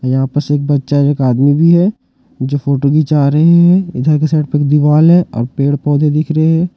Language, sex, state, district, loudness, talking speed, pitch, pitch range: Hindi, male, Jharkhand, Ranchi, -12 LUFS, 230 wpm, 150 Hz, 140-160 Hz